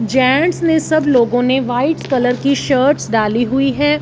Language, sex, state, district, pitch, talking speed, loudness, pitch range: Hindi, female, Punjab, Fazilka, 265 Hz, 180 wpm, -14 LUFS, 245-295 Hz